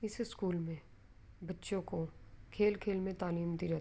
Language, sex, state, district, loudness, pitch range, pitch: Urdu, female, Andhra Pradesh, Anantapur, -38 LUFS, 165-195 Hz, 180 Hz